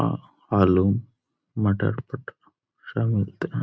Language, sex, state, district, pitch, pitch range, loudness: Hindi, male, Bihar, Gaya, 110 Hz, 100-120 Hz, -24 LUFS